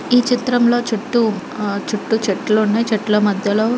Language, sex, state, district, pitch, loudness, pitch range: Telugu, female, Andhra Pradesh, Guntur, 220 Hz, -17 LUFS, 210-240 Hz